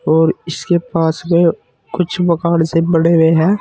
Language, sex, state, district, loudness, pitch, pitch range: Hindi, male, Uttar Pradesh, Saharanpur, -14 LUFS, 165 Hz, 165-175 Hz